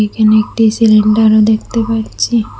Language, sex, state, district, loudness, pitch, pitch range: Bengali, female, Assam, Hailakandi, -11 LUFS, 220 Hz, 215-225 Hz